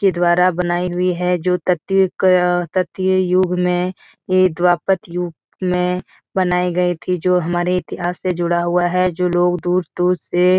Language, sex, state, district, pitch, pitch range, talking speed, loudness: Hindi, female, Bihar, Jahanabad, 180 Hz, 175-185 Hz, 175 wpm, -18 LUFS